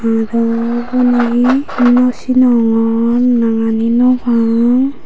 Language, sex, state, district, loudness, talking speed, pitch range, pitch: Chakma, female, Tripura, Unakoti, -12 LUFS, 95 wpm, 230-250 Hz, 240 Hz